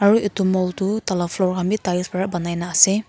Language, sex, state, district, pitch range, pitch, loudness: Nagamese, female, Nagaland, Kohima, 180-200 Hz, 185 Hz, -20 LUFS